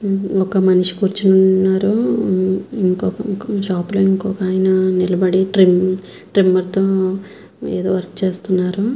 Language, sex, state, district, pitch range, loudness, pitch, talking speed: Telugu, female, Andhra Pradesh, Visakhapatnam, 185-195 Hz, -16 LUFS, 190 Hz, 75 wpm